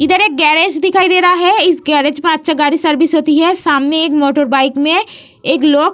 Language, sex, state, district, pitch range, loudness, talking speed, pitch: Hindi, female, Bihar, Vaishali, 295-360 Hz, -11 LUFS, 230 wpm, 315 Hz